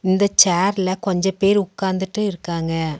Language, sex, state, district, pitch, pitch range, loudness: Tamil, female, Tamil Nadu, Nilgiris, 190 Hz, 175-200 Hz, -19 LUFS